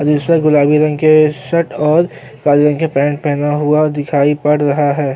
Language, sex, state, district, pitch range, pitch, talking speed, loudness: Hindi, male, Uttarakhand, Tehri Garhwal, 145-155 Hz, 150 Hz, 175 wpm, -13 LUFS